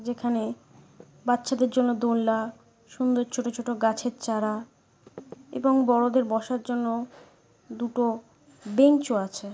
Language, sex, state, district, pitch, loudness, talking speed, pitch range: Bengali, female, West Bengal, Paschim Medinipur, 240 Hz, -26 LUFS, 105 wpm, 225-250 Hz